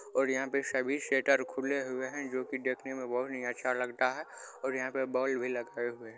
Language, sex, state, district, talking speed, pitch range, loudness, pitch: Hindi, male, Bihar, Supaul, 245 wpm, 125-135 Hz, -33 LUFS, 130 Hz